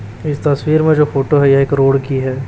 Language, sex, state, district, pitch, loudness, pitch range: Hindi, male, Chhattisgarh, Raipur, 140 Hz, -14 LUFS, 135-150 Hz